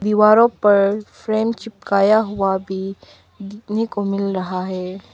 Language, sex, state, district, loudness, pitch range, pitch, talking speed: Hindi, female, Arunachal Pradesh, Papum Pare, -18 LUFS, 195-215 Hz, 200 Hz, 130 wpm